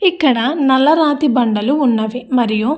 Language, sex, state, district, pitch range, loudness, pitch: Telugu, female, Andhra Pradesh, Anantapur, 235-295 Hz, -14 LUFS, 265 Hz